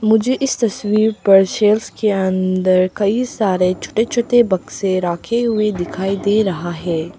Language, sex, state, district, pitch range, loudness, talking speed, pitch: Hindi, female, Arunachal Pradesh, Papum Pare, 185-220 Hz, -17 LUFS, 140 wpm, 205 Hz